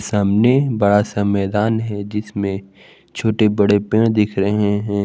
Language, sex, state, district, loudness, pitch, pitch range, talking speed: Hindi, male, Jharkhand, Garhwa, -17 LUFS, 105 Hz, 100-110 Hz, 140 wpm